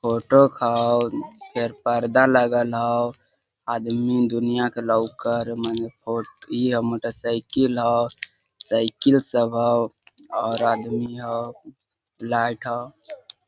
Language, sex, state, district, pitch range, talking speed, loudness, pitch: Hindi, male, Jharkhand, Sahebganj, 115-120 Hz, 105 wpm, -22 LUFS, 120 Hz